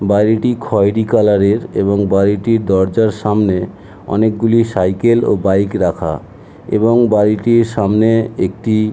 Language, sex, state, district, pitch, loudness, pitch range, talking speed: Bengali, male, West Bengal, Jhargram, 105 Hz, -14 LUFS, 100-115 Hz, 120 wpm